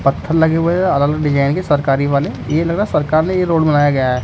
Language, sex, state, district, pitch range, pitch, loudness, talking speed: Hindi, male, Delhi, New Delhi, 140-160 Hz, 150 Hz, -15 LUFS, 270 wpm